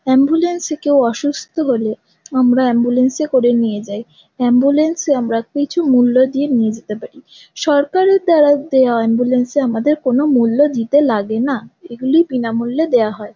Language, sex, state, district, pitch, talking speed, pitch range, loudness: Bengali, female, West Bengal, Jhargram, 255 Hz, 140 wpm, 235-290 Hz, -15 LUFS